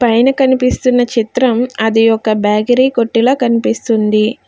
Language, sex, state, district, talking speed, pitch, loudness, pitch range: Telugu, female, Telangana, Hyderabad, 120 wpm, 235 Hz, -12 LUFS, 220-250 Hz